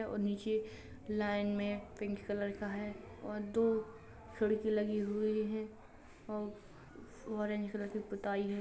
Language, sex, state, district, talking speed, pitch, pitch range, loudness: Hindi, female, Uttar Pradesh, Jalaun, 140 wpm, 210 Hz, 205-215 Hz, -38 LUFS